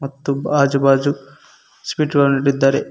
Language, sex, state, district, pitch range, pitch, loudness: Kannada, male, Karnataka, Koppal, 135-140 Hz, 140 Hz, -17 LUFS